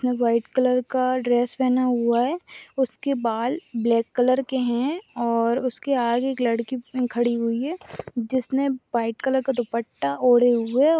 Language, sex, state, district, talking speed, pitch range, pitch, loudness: Hindi, female, Uttar Pradesh, Deoria, 165 wpm, 235-260 Hz, 245 Hz, -23 LUFS